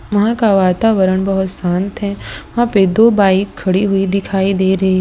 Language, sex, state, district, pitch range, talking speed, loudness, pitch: Hindi, female, Gujarat, Valsad, 190-205 Hz, 190 wpm, -14 LUFS, 195 Hz